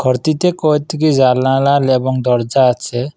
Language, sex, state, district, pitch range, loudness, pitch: Bengali, male, Assam, Kamrup Metropolitan, 125-150 Hz, -14 LUFS, 130 Hz